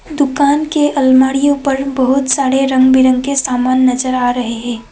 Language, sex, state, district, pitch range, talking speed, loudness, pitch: Hindi, female, Assam, Kamrup Metropolitan, 255-280 Hz, 160 wpm, -13 LUFS, 265 Hz